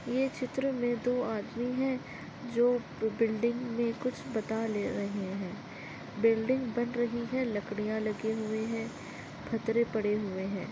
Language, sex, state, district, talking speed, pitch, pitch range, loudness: Hindi, female, Maharashtra, Nagpur, 145 wpm, 230 Hz, 215-245 Hz, -32 LUFS